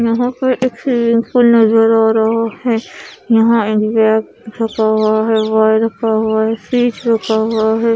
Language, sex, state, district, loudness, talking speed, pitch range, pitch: Hindi, female, Odisha, Khordha, -14 LUFS, 105 wpm, 220-235 Hz, 225 Hz